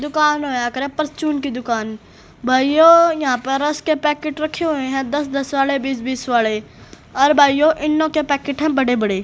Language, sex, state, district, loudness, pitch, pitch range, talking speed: Hindi, female, Haryana, Rohtak, -17 LUFS, 280 Hz, 260-305 Hz, 180 wpm